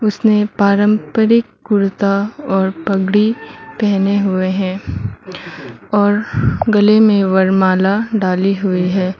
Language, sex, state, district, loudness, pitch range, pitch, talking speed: Hindi, female, Mizoram, Aizawl, -14 LUFS, 190-210 Hz, 200 Hz, 90 wpm